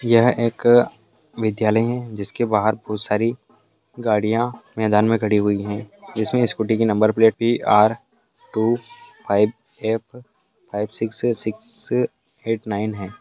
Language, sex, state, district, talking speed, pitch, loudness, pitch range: Hindi, male, Chhattisgarh, Bastar, 135 wpm, 110 Hz, -20 LUFS, 105-115 Hz